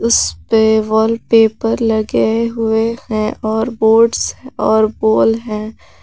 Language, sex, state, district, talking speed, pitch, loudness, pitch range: Hindi, female, Jharkhand, Garhwa, 90 wpm, 220 Hz, -14 LUFS, 220-230 Hz